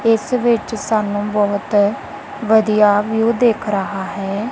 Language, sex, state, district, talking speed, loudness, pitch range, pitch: Punjabi, female, Punjab, Kapurthala, 120 wpm, -17 LUFS, 205-225 Hz, 215 Hz